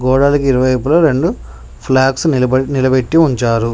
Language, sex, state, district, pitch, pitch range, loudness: Telugu, male, Telangana, Mahabubabad, 130 Hz, 125-140 Hz, -13 LUFS